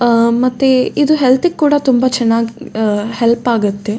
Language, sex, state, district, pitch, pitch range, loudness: Kannada, female, Karnataka, Dakshina Kannada, 240 Hz, 230-265 Hz, -13 LUFS